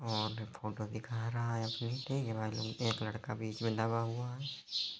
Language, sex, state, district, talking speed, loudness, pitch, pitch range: Hindi, male, Bihar, East Champaran, 155 wpm, -38 LUFS, 115 Hz, 110-120 Hz